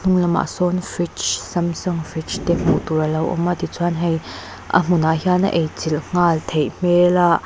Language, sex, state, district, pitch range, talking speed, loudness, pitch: Mizo, female, Mizoram, Aizawl, 160-180 Hz, 200 wpm, -19 LUFS, 170 Hz